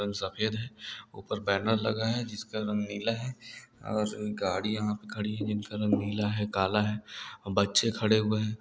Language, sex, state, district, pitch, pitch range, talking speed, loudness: Hindi, male, Uttar Pradesh, Hamirpur, 105 Hz, 105-110 Hz, 195 wpm, -30 LUFS